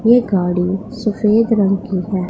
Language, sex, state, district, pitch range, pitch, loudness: Hindi, female, Punjab, Pathankot, 185-225 Hz, 200 Hz, -16 LUFS